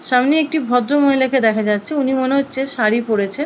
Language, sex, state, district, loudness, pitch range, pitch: Bengali, female, West Bengal, Purulia, -16 LUFS, 225-275 Hz, 265 Hz